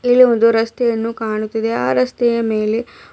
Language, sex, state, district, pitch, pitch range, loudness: Kannada, female, Karnataka, Bidar, 230 Hz, 220-235 Hz, -16 LUFS